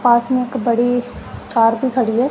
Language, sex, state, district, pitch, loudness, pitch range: Hindi, female, Punjab, Kapurthala, 245 Hz, -17 LUFS, 235-255 Hz